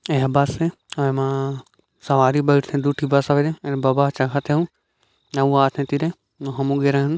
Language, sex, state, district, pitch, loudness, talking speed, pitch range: Hindi, male, Chhattisgarh, Bilaspur, 140 Hz, -20 LUFS, 175 wpm, 135-145 Hz